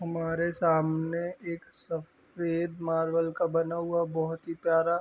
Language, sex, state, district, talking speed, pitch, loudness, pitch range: Hindi, male, Uttar Pradesh, Varanasi, 145 wpm, 165 Hz, -30 LUFS, 165-170 Hz